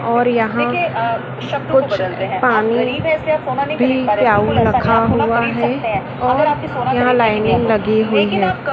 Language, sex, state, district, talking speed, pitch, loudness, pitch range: Hindi, female, Madhya Pradesh, Dhar, 95 wpm, 235 Hz, -16 LUFS, 220-260 Hz